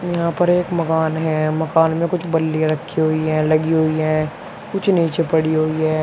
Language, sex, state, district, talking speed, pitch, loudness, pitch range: Hindi, male, Uttar Pradesh, Shamli, 200 wpm, 160 Hz, -18 LUFS, 155-170 Hz